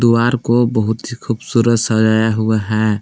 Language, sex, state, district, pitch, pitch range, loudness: Hindi, male, Jharkhand, Palamu, 110 Hz, 110-120 Hz, -15 LUFS